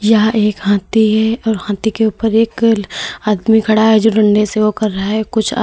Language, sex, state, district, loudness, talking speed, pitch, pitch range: Hindi, female, Uttar Pradesh, Lalitpur, -14 LUFS, 225 wpm, 220 Hz, 210-220 Hz